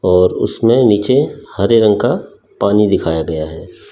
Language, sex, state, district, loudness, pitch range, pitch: Hindi, male, Delhi, New Delhi, -14 LUFS, 90-120 Hz, 105 Hz